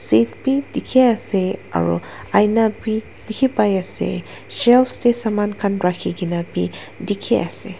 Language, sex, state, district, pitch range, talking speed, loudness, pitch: Nagamese, female, Nagaland, Dimapur, 175-235 Hz, 140 wpm, -19 LUFS, 205 Hz